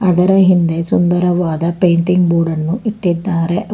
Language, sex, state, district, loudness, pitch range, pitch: Kannada, female, Karnataka, Bangalore, -14 LUFS, 170-180 Hz, 175 Hz